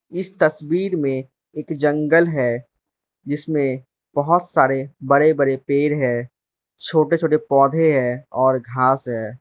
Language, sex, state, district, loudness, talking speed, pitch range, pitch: Hindi, male, Manipur, Imphal West, -19 LUFS, 130 wpm, 130-155 Hz, 140 Hz